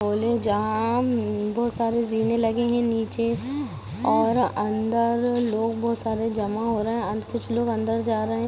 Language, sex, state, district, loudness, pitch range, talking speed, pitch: Hindi, female, Bihar, Muzaffarpur, -24 LUFS, 220-235 Hz, 170 wpm, 230 Hz